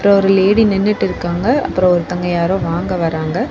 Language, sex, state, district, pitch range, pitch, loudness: Tamil, female, Tamil Nadu, Kanyakumari, 175-200 Hz, 185 Hz, -15 LUFS